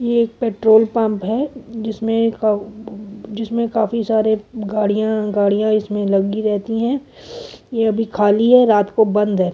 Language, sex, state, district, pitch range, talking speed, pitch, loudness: Hindi, female, Chhattisgarh, Korba, 210-230 Hz, 150 wpm, 220 Hz, -17 LUFS